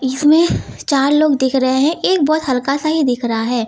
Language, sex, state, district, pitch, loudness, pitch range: Hindi, female, Uttar Pradesh, Lucknow, 275 Hz, -15 LUFS, 255-305 Hz